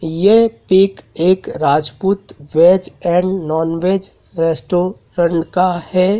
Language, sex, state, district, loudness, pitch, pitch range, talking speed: Hindi, male, Madhya Pradesh, Dhar, -15 LUFS, 180 Hz, 165-190 Hz, 105 wpm